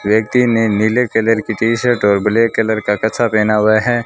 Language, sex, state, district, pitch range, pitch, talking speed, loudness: Hindi, male, Rajasthan, Bikaner, 110-115 Hz, 110 Hz, 220 wpm, -14 LUFS